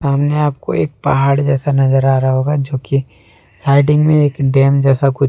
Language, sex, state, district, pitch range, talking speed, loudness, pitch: Hindi, male, Jharkhand, Deoghar, 135-140 Hz, 195 wpm, -14 LUFS, 140 Hz